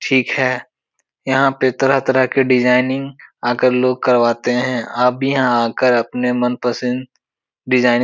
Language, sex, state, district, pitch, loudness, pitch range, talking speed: Hindi, male, Uttar Pradesh, Etah, 125 Hz, -16 LUFS, 125-130 Hz, 140 wpm